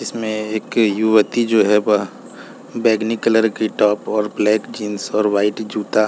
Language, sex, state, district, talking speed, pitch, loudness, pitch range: Hindi, male, Chhattisgarh, Balrampur, 180 wpm, 110 Hz, -18 LUFS, 105-110 Hz